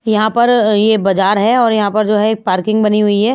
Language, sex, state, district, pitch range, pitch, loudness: Hindi, female, Bihar, Patna, 205-220 Hz, 215 Hz, -13 LUFS